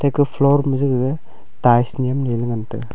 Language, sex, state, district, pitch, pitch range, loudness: Wancho, male, Arunachal Pradesh, Longding, 130 Hz, 120-140 Hz, -18 LUFS